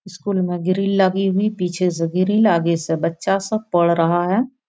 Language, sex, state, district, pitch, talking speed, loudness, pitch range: Maithili, female, Bihar, Araria, 185 Hz, 190 wpm, -19 LUFS, 170-195 Hz